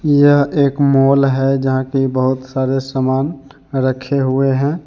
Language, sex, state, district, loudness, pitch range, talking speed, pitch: Hindi, male, Jharkhand, Deoghar, -15 LUFS, 130-140 Hz, 150 wpm, 135 Hz